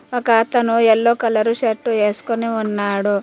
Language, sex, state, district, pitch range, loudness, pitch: Telugu, female, Telangana, Mahabubabad, 215-235 Hz, -17 LUFS, 225 Hz